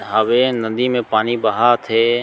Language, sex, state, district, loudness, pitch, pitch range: Chhattisgarhi, male, Chhattisgarh, Sukma, -16 LUFS, 120 Hz, 110-120 Hz